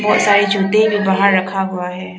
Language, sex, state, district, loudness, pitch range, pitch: Hindi, female, Arunachal Pradesh, Papum Pare, -15 LUFS, 185-205 Hz, 195 Hz